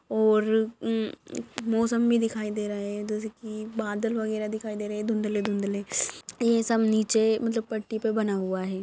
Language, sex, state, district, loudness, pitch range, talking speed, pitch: Hindi, female, Maharashtra, Dhule, -27 LUFS, 210-225 Hz, 185 wpm, 220 Hz